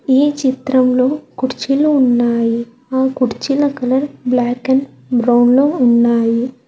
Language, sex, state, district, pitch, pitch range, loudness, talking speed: Telugu, female, Telangana, Hyderabad, 255 Hz, 240-270 Hz, -15 LUFS, 110 wpm